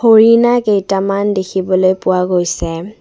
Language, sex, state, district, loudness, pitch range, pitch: Assamese, female, Assam, Kamrup Metropolitan, -13 LUFS, 185-215 Hz, 195 Hz